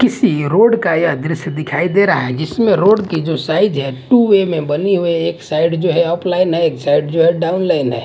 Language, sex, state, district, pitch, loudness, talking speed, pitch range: Hindi, male, Punjab, Fazilka, 170 Hz, -14 LUFS, 240 wpm, 155-190 Hz